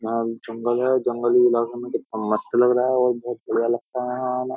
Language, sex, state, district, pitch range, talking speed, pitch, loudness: Hindi, male, Uttar Pradesh, Jyotiba Phule Nagar, 115-125 Hz, 210 wpm, 120 Hz, -22 LUFS